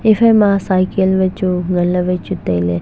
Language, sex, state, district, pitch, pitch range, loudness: Wancho, male, Arunachal Pradesh, Longding, 185 Hz, 180-195 Hz, -15 LUFS